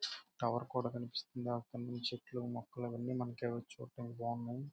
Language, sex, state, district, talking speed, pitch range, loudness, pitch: Telugu, male, Andhra Pradesh, Srikakulam, 125 wpm, 120-125 Hz, -42 LUFS, 120 Hz